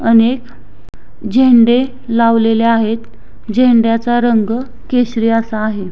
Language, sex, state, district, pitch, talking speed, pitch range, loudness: Marathi, female, Maharashtra, Sindhudurg, 230 Hz, 90 wpm, 225-245 Hz, -13 LUFS